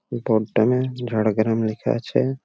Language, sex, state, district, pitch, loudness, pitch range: Bengali, male, West Bengal, Jhargram, 115 Hz, -22 LUFS, 110-125 Hz